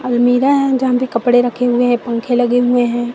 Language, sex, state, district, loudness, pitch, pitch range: Hindi, female, Chhattisgarh, Raipur, -14 LUFS, 245 Hz, 240-250 Hz